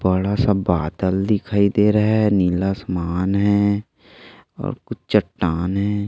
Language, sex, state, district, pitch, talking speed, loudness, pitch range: Hindi, male, Maharashtra, Aurangabad, 100 Hz, 140 wpm, -19 LUFS, 95-105 Hz